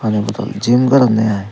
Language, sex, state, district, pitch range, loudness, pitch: Chakma, male, Tripura, Dhalai, 105-120 Hz, -14 LUFS, 110 Hz